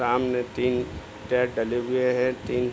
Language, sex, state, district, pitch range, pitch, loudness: Hindi, male, Bihar, Gopalganj, 120-125 Hz, 125 Hz, -26 LUFS